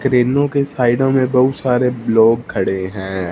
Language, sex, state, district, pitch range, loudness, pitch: Hindi, male, Punjab, Fazilka, 110-130 Hz, -16 LUFS, 125 Hz